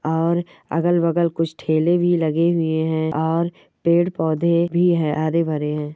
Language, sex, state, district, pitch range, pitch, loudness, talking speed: Hindi, male, West Bengal, Malda, 160-170 Hz, 165 Hz, -20 LUFS, 160 wpm